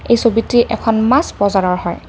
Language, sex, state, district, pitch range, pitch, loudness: Assamese, female, Assam, Kamrup Metropolitan, 200-235 Hz, 225 Hz, -14 LUFS